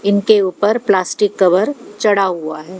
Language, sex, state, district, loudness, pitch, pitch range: Hindi, female, Haryana, Jhajjar, -15 LUFS, 200 Hz, 185-210 Hz